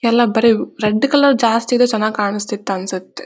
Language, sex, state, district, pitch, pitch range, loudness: Kannada, female, Karnataka, Bellary, 225 Hz, 210-240 Hz, -16 LUFS